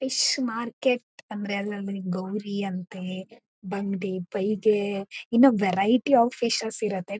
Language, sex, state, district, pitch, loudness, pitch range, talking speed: Kannada, female, Karnataka, Mysore, 205 Hz, -26 LUFS, 195-235 Hz, 100 wpm